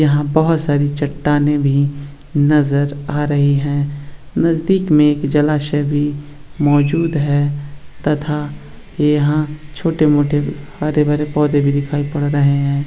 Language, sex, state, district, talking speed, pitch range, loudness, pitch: Hindi, male, Bihar, East Champaran, 140 wpm, 145-150 Hz, -16 LUFS, 145 Hz